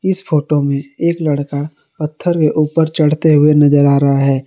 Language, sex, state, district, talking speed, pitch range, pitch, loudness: Hindi, male, Jharkhand, Garhwa, 190 wpm, 140-160 Hz, 150 Hz, -14 LUFS